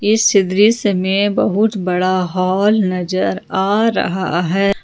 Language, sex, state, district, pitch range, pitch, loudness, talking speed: Hindi, female, Jharkhand, Ranchi, 185-205 Hz, 195 Hz, -15 LUFS, 125 wpm